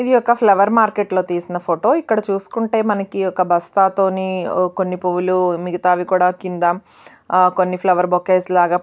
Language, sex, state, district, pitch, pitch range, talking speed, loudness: Telugu, male, Telangana, Nalgonda, 185 Hz, 180-200 Hz, 155 wpm, -17 LUFS